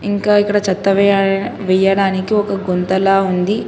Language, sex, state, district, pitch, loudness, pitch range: Telugu, female, Telangana, Hyderabad, 195 Hz, -15 LUFS, 190-205 Hz